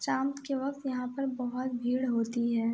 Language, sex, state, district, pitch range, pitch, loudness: Hindi, female, Uttar Pradesh, Etah, 240-270 Hz, 250 Hz, -32 LUFS